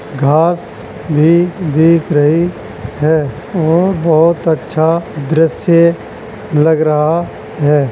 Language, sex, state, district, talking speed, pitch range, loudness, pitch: Hindi, male, Uttar Pradesh, Hamirpur, 90 wpm, 150-170 Hz, -12 LUFS, 160 Hz